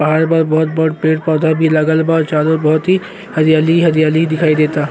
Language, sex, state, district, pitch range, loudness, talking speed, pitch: Bhojpuri, male, Uttar Pradesh, Gorakhpur, 155-160 Hz, -13 LUFS, 210 wpm, 160 Hz